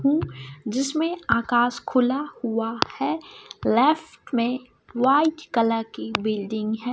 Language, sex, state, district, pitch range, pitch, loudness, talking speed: Hindi, male, Chhattisgarh, Raipur, 225-285 Hz, 245 Hz, -24 LUFS, 115 wpm